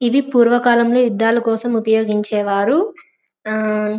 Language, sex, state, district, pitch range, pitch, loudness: Telugu, female, Andhra Pradesh, Anantapur, 215-240 Hz, 225 Hz, -16 LUFS